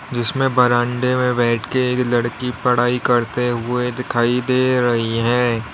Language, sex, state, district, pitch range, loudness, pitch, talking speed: Hindi, male, Uttar Pradesh, Lalitpur, 120-125 Hz, -18 LUFS, 125 Hz, 145 wpm